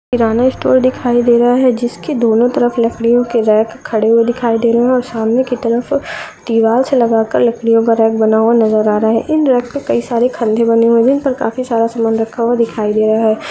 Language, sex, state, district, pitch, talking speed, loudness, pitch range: Hindi, female, Uttar Pradesh, Budaun, 235 Hz, 235 wpm, -13 LUFS, 225-245 Hz